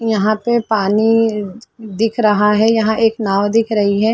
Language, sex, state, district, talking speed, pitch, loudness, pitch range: Hindi, female, Chhattisgarh, Balrampur, 175 wpm, 220 Hz, -15 LUFS, 210-225 Hz